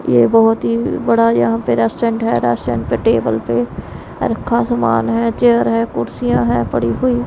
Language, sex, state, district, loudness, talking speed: Hindi, female, Punjab, Pathankot, -15 LUFS, 180 wpm